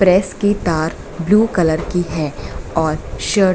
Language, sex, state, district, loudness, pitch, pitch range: Hindi, female, Bihar, Bhagalpur, -18 LUFS, 175 Hz, 155-195 Hz